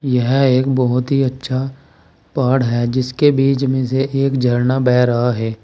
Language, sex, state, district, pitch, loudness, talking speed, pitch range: Hindi, male, Uttar Pradesh, Saharanpur, 130 Hz, -16 LUFS, 170 wpm, 125-135 Hz